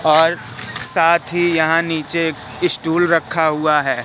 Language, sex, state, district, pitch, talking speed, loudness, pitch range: Hindi, male, Madhya Pradesh, Katni, 160 Hz, 150 wpm, -16 LUFS, 150-170 Hz